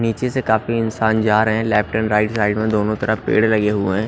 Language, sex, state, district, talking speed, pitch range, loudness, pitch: Hindi, male, Odisha, Nuapada, 250 wpm, 105-110 Hz, -18 LUFS, 110 Hz